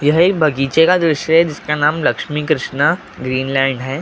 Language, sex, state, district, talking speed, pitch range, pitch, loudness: Hindi, male, Maharashtra, Gondia, 225 wpm, 135-160 Hz, 150 Hz, -15 LUFS